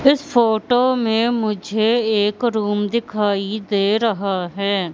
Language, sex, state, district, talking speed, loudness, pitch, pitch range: Hindi, female, Madhya Pradesh, Katni, 120 wpm, -19 LUFS, 215 Hz, 200-235 Hz